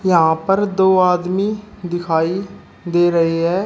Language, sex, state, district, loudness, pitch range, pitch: Hindi, male, Uttar Pradesh, Shamli, -17 LUFS, 170-195 Hz, 180 Hz